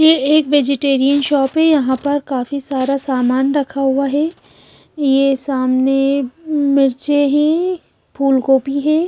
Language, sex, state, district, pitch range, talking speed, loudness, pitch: Hindi, female, Punjab, Fazilka, 270-290 Hz, 125 wpm, -15 LUFS, 275 Hz